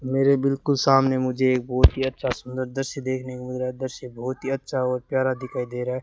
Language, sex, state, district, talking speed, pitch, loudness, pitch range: Hindi, male, Rajasthan, Bikaner, 250 wpm, 130 Hz, -24 LUFS, 125-135 Hz